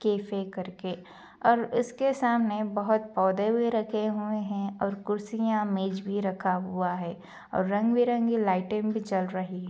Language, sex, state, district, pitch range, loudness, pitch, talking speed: Hindi, female, Bihar, Purnia, 190-220 Hz, -28 LUFS, 205 Hz, 160 wpm